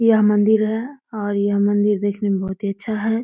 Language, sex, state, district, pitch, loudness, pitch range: Hindi, female, Bihar, Samastipur, 210 Hz, -19 LUFS, 200-220 Hz